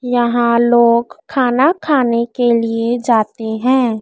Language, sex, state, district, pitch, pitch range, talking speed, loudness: Hindi, female, Madhya Pradesh, Dhar, 240 Hz, 235-255 Hz, 120 wpm, -14 LUFS